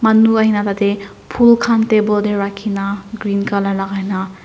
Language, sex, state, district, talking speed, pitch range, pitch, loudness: Nagamese, female, Nagaland, Dimapur, 200 wpm, 200-220 Hz, 205 Hz, -16 LUFS